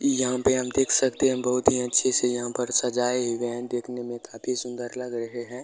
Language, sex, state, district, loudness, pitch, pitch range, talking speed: Hindi, male, Bihar, Bhagalpur, -25 LUFS, 125 Hz, 120-125 Hz, 225 wpm